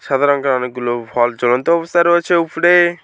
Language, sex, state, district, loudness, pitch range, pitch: Bengali, male, West Bengal, Alipurduar, -15 LUFS, 125-170 Hz, 145 Hz